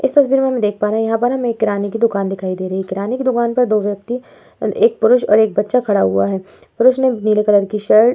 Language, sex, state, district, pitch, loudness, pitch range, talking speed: Hindi, female, Bihar, Vaishali, 220 Hz, -16 LUFS, 205-250 Hz, 295 wpm